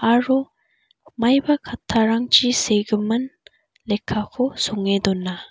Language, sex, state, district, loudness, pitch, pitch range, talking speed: Garo, female, Meghalaya, West Garo Hills, -20 LUFS, 230 Hz, 205-255 Hz, 75 wpm